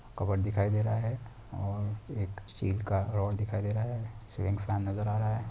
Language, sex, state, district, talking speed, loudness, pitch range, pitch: Hindi, male, Bihar, Araria, 220 wpm, -33 LUFS, 100-110 Hz, 105 Hz